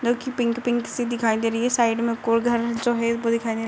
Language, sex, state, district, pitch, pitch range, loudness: Hindi, female, Uttar Pradesh, Budaun, 235 Hz, 230-240 Hz, -23 LUFS